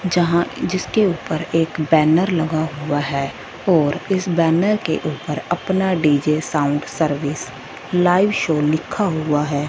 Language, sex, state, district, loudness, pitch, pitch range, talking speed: Hindi, female, Punjab, Fazilka, -19 LUFS, 160 Hz, 150-175 Hz, 135 wpm